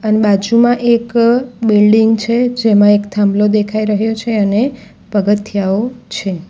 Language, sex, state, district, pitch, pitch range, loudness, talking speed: Gujarati, female, Gujarat, Valsad, 215 Hz, 205-235 Hz, -13 LUFS, 140 wpm